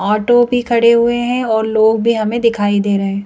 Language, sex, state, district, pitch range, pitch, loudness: Hindi, female, Madhya Pradesh, Bhopal, 210-235 Hz, 225 Hz, -14 LUFS